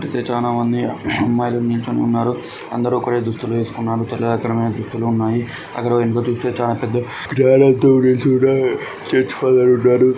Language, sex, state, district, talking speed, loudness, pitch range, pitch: Telugu, male, Andhra Pradesh, Srikakulam, 110 wpm, -17 LUFS, 115-125 Hz, 120 Hz